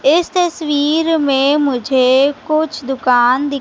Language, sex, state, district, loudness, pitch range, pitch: Hindi, female, Madhya Pradesh, Katni, -14 LUFS, 270-315 Hz, 285 Hz